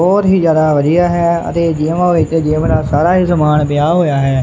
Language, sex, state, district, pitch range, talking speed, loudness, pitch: Punjabi, male, Punjab, Kapurthala, 150-175 Hz, 215 wpm, -12 LUFS, 165 Hz